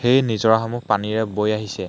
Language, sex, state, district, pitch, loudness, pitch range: Assamese, male, Assam, Hailakandi, 110 Hz, -20 LUFS, 105-115 Hz